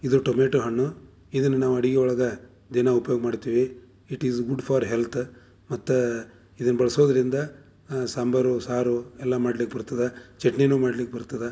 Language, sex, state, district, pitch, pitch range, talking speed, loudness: Kannada, male, Karnataka, Dharwad, 125 Hz, 120-130 Hz, 145 wpm, -25 LUFS